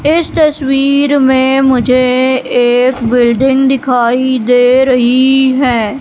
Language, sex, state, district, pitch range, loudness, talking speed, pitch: Hindi, female, Madhya Pradesh, Katni, 250-270 Hz, -10 LUFS, 100 wpm, 260 Hz